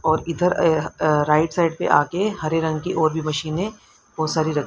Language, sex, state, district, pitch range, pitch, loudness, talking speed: Hindi, female, Haryana, Rohtak, 155-170 Hz, 160 Hz, -21 LUFS, 220 wpm